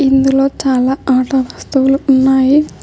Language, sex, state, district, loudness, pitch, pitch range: Telugu, female, Telangana, Hyderabad, -12 LUFS, 270 Hz, 265-270 Hz